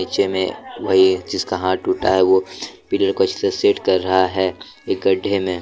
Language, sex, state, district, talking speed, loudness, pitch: Hindi, male, Jharkhand, Deoghar, 180 wpm, -18 LUFS, 95 Hz